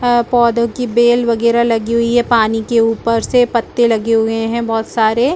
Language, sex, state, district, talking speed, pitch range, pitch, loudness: Hindi, female, Chhattisgarh, Bilaspur, 200 wpm, 225-240 Hz, 235 Hz, -14 LUFS